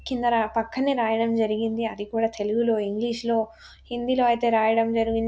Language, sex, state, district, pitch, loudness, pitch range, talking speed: Telugu, female, Telangana, Nalgonda, 225 Hz, -24 LUFS, 225-235 Hz, 170 wpm